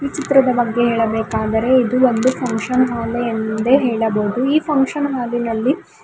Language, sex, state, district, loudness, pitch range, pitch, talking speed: Kannada, female, Karnataka, Bidar, -17 LUFS, 225-265 Hz, 240 Hz, 130 wpm